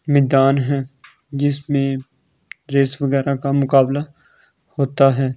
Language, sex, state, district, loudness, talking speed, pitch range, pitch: Hindi, male, Delhi, New Delhi, -18 LUFS, 100 wpm, 135-140 Hz, 140 Hz